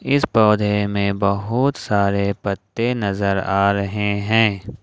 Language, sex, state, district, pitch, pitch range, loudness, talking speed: Hindi, male, Jharkhand, Ranchi, 100 Hz, 100-110 Hz, -19 LUFS, 125 wpm